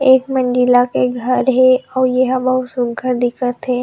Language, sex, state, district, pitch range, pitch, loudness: Chhattisgarhi, female, Chhattisgarh, Rajnandgaon, 250-255 Hz, 255 Hz, -15 LUFS